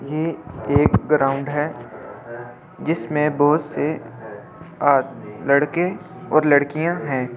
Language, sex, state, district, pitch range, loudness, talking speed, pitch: Hindi, male, Delhi, New Delhi, 140-160 Hz, -20 LUFS, 100 wpm, 150 Hz